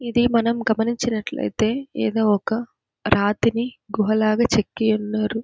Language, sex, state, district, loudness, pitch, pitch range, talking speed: Telugu, female, Andhra Pradesh, Krishna, -21 LUFS, 225 Hz, 215-235 Hz, 90 wpm